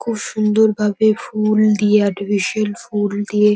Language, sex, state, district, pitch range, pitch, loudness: Bengali, female, West Bengal, North 24 Parganas, 205-215 Hz, 210 Hz, -17 LUFS